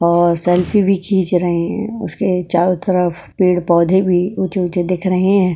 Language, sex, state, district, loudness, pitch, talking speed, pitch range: Hindi, female, Goa, North and South Goa, -15 LUFS, 180 Hz, 185 wpm, 175-190 Hz